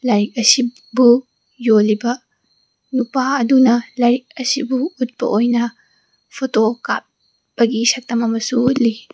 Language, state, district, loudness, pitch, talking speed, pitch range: Manipuri, Manipur, Imphal West, -17 LUFS, 245 Hz, 90 wpm, 230-255 Hz